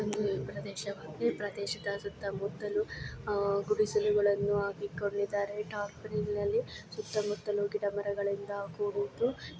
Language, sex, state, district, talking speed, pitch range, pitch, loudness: Kannada, female, Karnataka, Chamarajanagar, 100 wpm, 200-210 Hz, 205 Hz, -34 LUFS